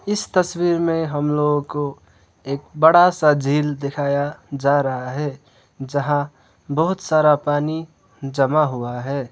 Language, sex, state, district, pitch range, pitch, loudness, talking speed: Hindi, male, West Bengal, Alipurduar, 140-155 Hz, 145 Hz, -20 LUFS, 135 wpm